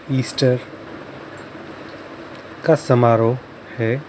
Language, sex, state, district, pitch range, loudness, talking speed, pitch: Hindi, male, Maharashtra, Mumbai Suburban, 115-135 Hz, -18 LUFS, 75 wpm, 125 Hz